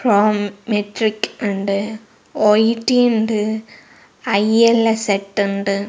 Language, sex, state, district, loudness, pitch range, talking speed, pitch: Malayalam, female, Kerala, Kozhikode, -17 LUFS, 205-225 Hz, 80 wpm, 215 Hz